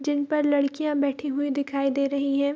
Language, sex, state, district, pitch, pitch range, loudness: Hindi, female, Bihar, Darbhanga, 280 Hz, 280-290 Hz, -25 LUFS